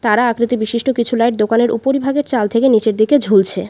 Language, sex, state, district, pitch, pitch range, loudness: Bengali, female, West Bengal, Alipurduar, 235 Hz, 220-250 Hz, -14 LUFS